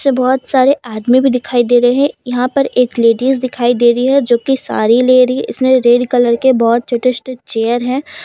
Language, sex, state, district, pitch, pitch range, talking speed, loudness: Hindi, female, Jharkhand, Deoghar, 250 Hz, 240-260 Hz, 210 wpm, -12 LUFS